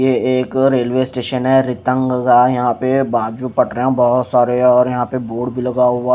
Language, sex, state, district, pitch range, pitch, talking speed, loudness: Hindi, female, Odisha, Khordha, 125-130 Hz, 125 Hz, 225 wpm, -15 LUFS